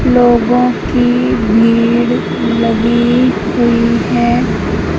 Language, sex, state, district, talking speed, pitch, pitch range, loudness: Hindi, female, Madhya Pradesh, Umaria, 70 wpm, 230 Hz, 220-245 Hz, -12 LUFS